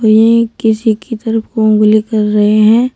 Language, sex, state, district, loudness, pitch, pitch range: Hindi, female, Uttar Pradesh, Saharanpur, -11 LUFS, 220 Hz, 215-225 Hz